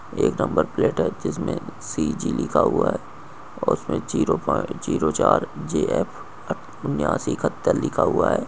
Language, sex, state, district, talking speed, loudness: Hindi, male, Chhattisgarh, Rajnandgaon, 170 wpm, -23 LUFS